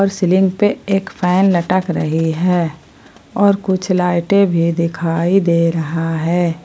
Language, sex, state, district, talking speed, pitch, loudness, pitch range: Hindi, female, Jharkhand, Palamu, 145 wpm, 180 Hz, -16 LUFS, 165-190 Hz